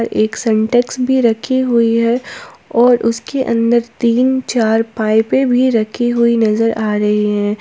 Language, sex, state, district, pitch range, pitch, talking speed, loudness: Hindi, female, Jharkhand, Palamu, 220-245 Hz, 230 Hz, 150 wpm, -14 LUFS